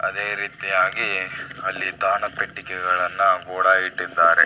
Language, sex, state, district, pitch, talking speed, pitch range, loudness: Kannada, male, Karnataka, Belgaum, 90 Hz, 95 wpm, 90-95 Hz, -21 LUFS